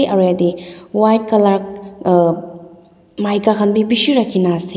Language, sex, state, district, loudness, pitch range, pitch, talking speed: Nagamese, female, Nagaland, Dimapur, -15 LUFS, 175-215 Hz, 195 Hz, 125 wpm